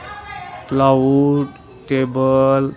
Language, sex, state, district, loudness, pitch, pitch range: Marathi, male, Maharashtra, Washim, -16 LUFS, 135 Hz, 130-145 Hz